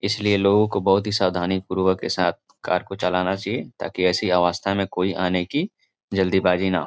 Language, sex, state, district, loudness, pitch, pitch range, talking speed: Hindi, male, Bihar, Gopalganj, -22 LUFS, 95 Hz, 90-100 Hz, 190 wpm